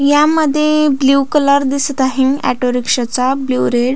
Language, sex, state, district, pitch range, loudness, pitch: Marathi, female, Maharashtra, Solapur, 255-290 Hz, -14 LUFS, 275 Hz